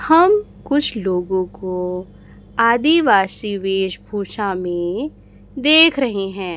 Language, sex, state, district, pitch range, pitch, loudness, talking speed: Hindi, male, Chhattisgarh, Raipur, 185-280 Hz, 200 Hz, -17 LUFS, 90 wpm